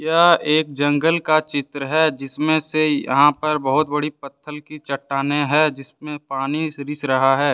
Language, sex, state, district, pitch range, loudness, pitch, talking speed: Hindi, male, Jharkhand, Deoghar, 140-155 Hz, -19 LUFS, 150 Hz, 165 wpm